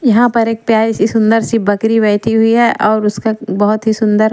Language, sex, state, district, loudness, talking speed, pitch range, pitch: Hindi, female, Punjab, Pathankot, -12 LUFS, 220 wpm, 215-225 Hz, 220 Hz